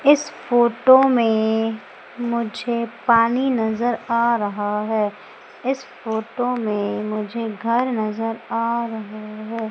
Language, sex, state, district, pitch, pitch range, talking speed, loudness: Hindi, female, Madhya Pradesh, Umaria, 230 Hz, 220-240 Hz, 110 wpm, -21 LUFS